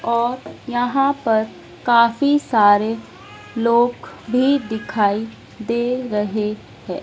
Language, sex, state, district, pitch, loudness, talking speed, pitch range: Hindi, female, Madhya Pradesh, Dhar, 235 Hz, -19 LUFS, 95 wpm, 220-245 Hz